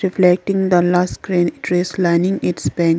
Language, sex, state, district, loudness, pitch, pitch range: English, female, Arunachal Pradesh, Lower Dibang Valley, -17 LUFS, 180 Hz, 175-185 Hz